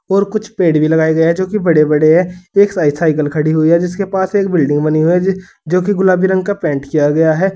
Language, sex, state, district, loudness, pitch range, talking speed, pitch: Hindi, male, Uttar Pradesh, Saharanpur, -13 LUFS, 155-190 Hz, 270 wpm, 175 Hz